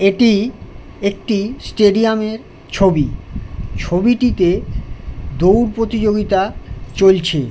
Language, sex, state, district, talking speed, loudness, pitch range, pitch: Bengali, male, West Bengal, Jhargram, 90 wpm, -16 LUFS, 175-220 Hz, 200 Hz